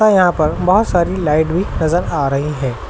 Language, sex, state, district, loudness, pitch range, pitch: Hindi, male, Uttar Pradesh, Lucknow, -16 LUFS, 150-180 Hz, 160 Hz